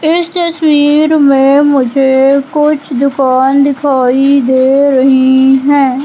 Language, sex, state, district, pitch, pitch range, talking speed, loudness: Hindi, female, Madhya Pradesh, Katni, 275 Hz, 265-290 Hz, 100 wpm, -9 LUFS